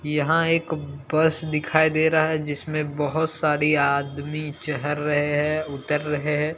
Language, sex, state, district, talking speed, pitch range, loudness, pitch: Hindi, male, Bihar, Katihar, 155 wpm, 145-155 Hz, -23 LUFS, 150 Hz